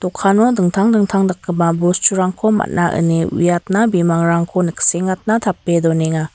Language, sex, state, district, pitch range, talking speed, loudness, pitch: Garo, female, Meghalaya, West Garo Hills, 170-195 Hz, 115 wpm, -15 LUFS, 180 Hz